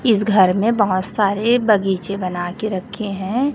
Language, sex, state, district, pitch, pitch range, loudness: Hindi, female, Chhattisgarh, Raipur, 205 Hz, 190-220 Hz, -18 LUFS